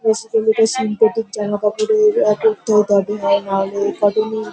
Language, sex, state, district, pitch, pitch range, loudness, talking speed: Bengali, female, West Bengal, North 24 Parganas, 220 Hz, 205-225 Hz, -17 LUFS, 135 wpm